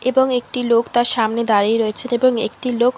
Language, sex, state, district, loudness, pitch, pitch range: Bengali, female, West Bengal, Dakshin Dinajpur, -18 LUFS, 240 Hz, 230-250 Hz